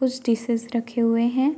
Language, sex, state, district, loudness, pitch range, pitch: Hindi, female, Uttar Pradesh, Varanasi, -23 LUFS, 230-260 Hz, 235 Hz